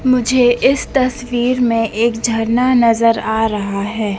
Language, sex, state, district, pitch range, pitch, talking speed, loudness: Hindi, female, Madhya Pradesh, Dhar, 225-250 Hz, 235 Hz, 145 wpm, -15 LUFS